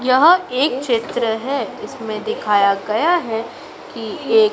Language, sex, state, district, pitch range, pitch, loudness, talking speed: Hindi, female, Madhya Pradesh, Dhar, 220-290 Hz, 250 Hz, -18 LUFS, 130 wpm